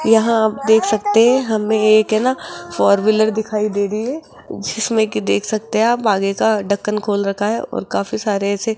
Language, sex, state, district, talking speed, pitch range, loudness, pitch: Hindi, female, Rajasthan, Jaipur, 210 wpm, 205-225 Hz, -17 LUFS, 215 Hz